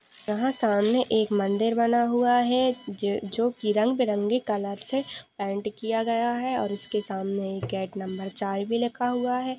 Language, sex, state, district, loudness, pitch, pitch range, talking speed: Hindi, female, Uttar Pradesh, Budaun, -26 LUFS, 220 Hz, 200-245 Hz, 165 wpm